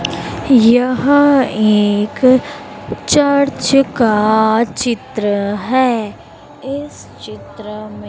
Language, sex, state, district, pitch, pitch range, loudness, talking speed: Hindi, female, Madhya Pradesh, Dhar, 235 Hz, 210-270 Hz, -14 LUFS, 65 wpm